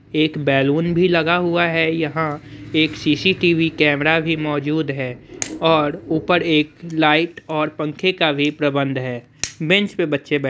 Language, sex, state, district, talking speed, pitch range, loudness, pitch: Hindi, male, Bihar, Muzaffarpur, 155 wpm, 145-165 Hz, -18 LUFS, 155 Hz